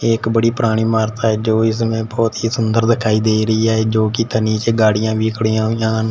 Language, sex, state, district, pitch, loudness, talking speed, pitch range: Hindi, male, Punjab, Fazilka, 110 Hz, -16 LUFS, 235 wpm, 110-115 Hz